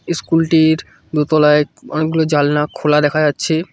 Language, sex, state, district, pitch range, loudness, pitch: Bengali, male, West Bengal, Cooch Behar, 150-160 Hz, -15 LUFS, 155 Hz